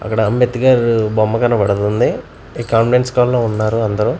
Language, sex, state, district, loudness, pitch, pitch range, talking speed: Telugu, male, Andhra Pradesh, Manyam, -15 LUFS, 115 Hz, 110-120 Hz, 145 wpm